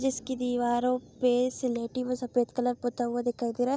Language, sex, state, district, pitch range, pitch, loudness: Hindi, female, Bihar, Araria, 245-250 Hz, 245 Hz, -29 LUFS